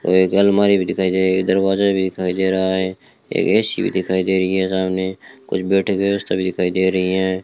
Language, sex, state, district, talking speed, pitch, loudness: Hindi, male, Rajasthan, Bikaner, 240 wpm, 95 Hz, -18 LUFS